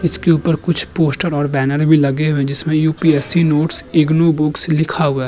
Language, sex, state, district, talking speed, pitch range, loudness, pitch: Hindi, male, Uttar Pradesh, Jyotiba Phule Nagar, 205 wpm, 145-165 Hz, -15 LUFS, 155 Hz